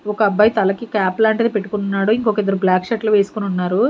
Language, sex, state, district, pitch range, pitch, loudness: Telugu, female, Andhra Pradesh, Sri Satya Sai, 195-215 Hz, 210 Hz, -17 LUFS